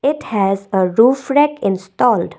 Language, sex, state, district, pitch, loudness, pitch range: English, female, Assam, Kamrup Metropolitan, 225 Hz, -16 LUFS, 195-280 Hz